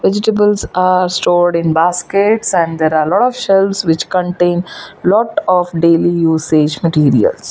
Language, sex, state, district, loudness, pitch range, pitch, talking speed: English, female, Gujarat, Valsad, -13 LUFS, 165-195 Hz, 175 Hz, 145 wpm